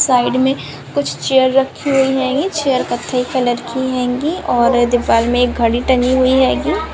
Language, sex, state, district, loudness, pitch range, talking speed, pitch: Hindi, female, Bihar, Gopalganj, -15 LUFS, 245-265 Hz, 180 wpm, 255 Hz